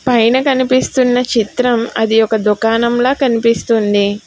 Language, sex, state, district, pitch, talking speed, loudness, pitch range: Telugu, female, Telangana, Hyderabad, 230 Hz, 100 wpm, -13 LUFS, 225-250 Hz